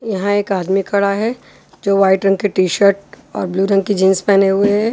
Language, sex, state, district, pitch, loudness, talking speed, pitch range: Hindi, female, Haryana, Charkhi Dadri, 200 Hz, -15 LUFS, 220 wpm, 195-205 Hz